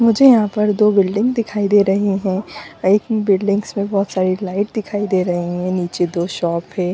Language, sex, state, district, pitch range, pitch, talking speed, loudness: Hindi, female, Jharkhand, Jamtara, 185-210 Hz, 200 Hz, 200 wpm, -17 LUFS